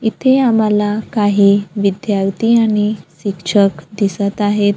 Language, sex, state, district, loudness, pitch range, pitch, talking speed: Marathi, female, Maharashtra, Gondia, -15 LUFS, 200-215 Hz, 205 Hz, 100 wpm